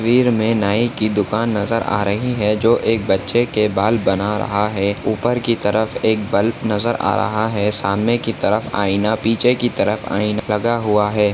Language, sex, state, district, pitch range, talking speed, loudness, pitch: Hindi, male, Maharashtra, Dhule, 105-115 Hz, 190 wpm, -18 LUFS, 110 Hz